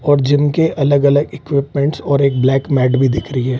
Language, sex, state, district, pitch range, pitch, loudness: Hindi, male, Bihar, Gaya, 135-145 Hz, 140 Hz, -15 LUFS